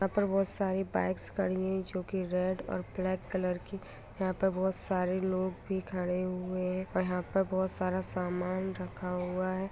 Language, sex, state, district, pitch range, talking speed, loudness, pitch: Hindi, female, Jharkhand, Sahebganj, 180-190 Hz, 190 wpm, -33 LUFS, 185 Hz